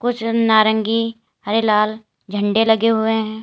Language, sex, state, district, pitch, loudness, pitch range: Hindi, female, Uttar Pradesh, Lalitpur, 220 Hz, -17 LUFS, 215-225 Hz